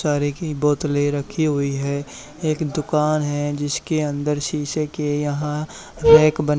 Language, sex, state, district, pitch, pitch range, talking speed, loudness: Hindi, male, Haryana, Charkhi Dadri, 150 Hz, 145-155 Hz, 145 wpm, -21 LUFS